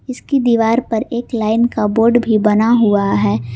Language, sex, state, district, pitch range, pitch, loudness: Hindi, female, Jharkhand, Garhwa, 210-240 Hz, 225 Hz, -15 LUFS